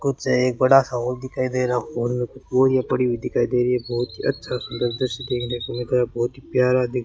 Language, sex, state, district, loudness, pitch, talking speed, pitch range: Hindi, male, Rajasthan, Bikaner, -22 LUFS, 125 Hz, 275 wpm, 120-130 Hz